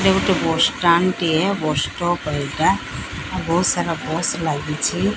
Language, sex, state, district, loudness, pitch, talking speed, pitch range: Odia, female, Odisha, Sambalpur, -20 LUFS, 160 Hz, 150 wpm, 150-175 Hz